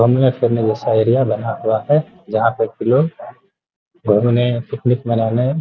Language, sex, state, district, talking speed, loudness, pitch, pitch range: Hindi, male, Bihar, Gaya, 170 wpm, -17 LUFS, 120 Hz, 115-130 Hz